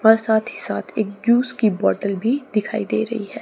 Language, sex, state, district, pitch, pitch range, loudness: Hindi, female, Chandigarh, Chandigarh, 220 Hz, 210-225 Hz, -21 LUFS